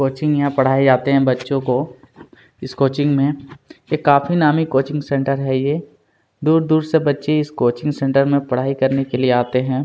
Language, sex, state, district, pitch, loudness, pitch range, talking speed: Hindi, male, Chhattisgarh, Kabirdham, 140 Hz, -17 LUFS, 130-150 Hz, 185 wpm